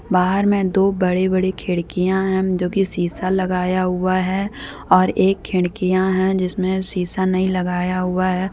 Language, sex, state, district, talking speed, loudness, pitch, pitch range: Hindi, female, Jharkhand, Deoghar, 160 wpm, -19 LUFS, 185 Hz, 180-190 Hz